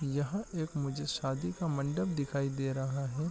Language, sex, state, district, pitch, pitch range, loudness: Hindi, male, Chhattisgarh, Raigarh, 145 Hz, 135-160 Hz, -35 LUFS